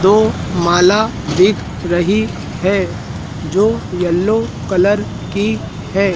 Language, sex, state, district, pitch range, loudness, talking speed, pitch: Hindi, male, Madhya Pradesh, Dhar, 175-205 Hz, -16 LUFS, 95 wpm, 185 Hz